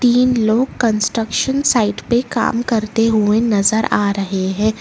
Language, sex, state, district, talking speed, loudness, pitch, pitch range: Hindi, female, Karnataka, Bangalore, 150 wpm, -16 LUFS, 225 Hz, 215-240 Hz